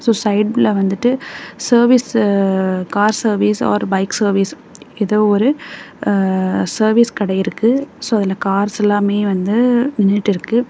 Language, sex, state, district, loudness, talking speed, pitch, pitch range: Tamil, female, Tamil Nadu, Namakkal, -16 LUFS, 105 wpm, 210 Hz, 195-235 Hz